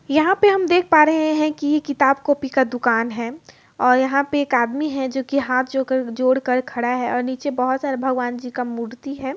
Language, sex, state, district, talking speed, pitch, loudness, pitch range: Hindi, female, Bihar, Muzaffarpur, 230 wpm, 265 Hz, -19 LUFS, 250-285 Hz